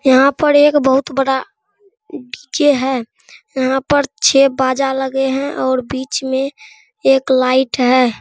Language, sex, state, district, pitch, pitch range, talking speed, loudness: Hindi, male, Bihar, Araria, 270 Hz, 260-285 Hz, 155 wpm, -15 LUFS